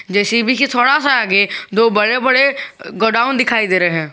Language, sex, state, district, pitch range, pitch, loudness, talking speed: Hindi, male, Jharkhand, Garhwa, 205-255 Hz, 230 Hz, -14 LUFS, 190 wpm